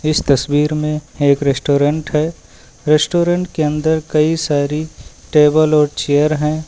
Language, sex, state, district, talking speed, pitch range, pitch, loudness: Hindi, male, Uttar Pradesh, Lucknow, 135 wpm, 145-155 Hz, 150 Hz, -15 LUFS